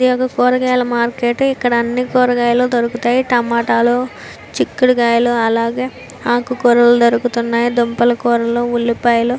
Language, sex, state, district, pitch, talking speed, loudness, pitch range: Telugu, female, Andhra Pradesh, Visakhapatnam, 240 Hz, 115 wpm, -15 LUFS, 235-250 Hz